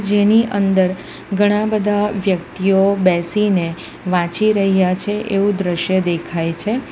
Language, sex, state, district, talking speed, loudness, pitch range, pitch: Gujarati, female, Gujarat, Valsad, 115 wpm, -17 LUFS, 180-205 Hz, 195 Hz